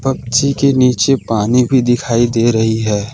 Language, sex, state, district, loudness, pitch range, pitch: Hindi, male, Jharkhand, Deoghar, -13 LUFS, 115-135 Hz, 120 Hz